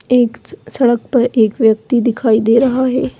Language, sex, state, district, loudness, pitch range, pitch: Kumaoni, female, Uttarakhand, Tehri Garhwal, -14 LUFS, 225-250 Hz, 240 Hz